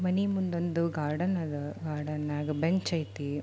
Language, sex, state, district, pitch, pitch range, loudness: Kannada, female, Karnataka, Belgaum, 160 Hz, 150-175 Hz, -31 LUFS